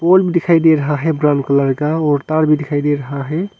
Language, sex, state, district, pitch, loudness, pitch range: Hindi, male, Arunachal Pradesh, Longding, 150 Hz, -15 LUFS, 145-165 Hz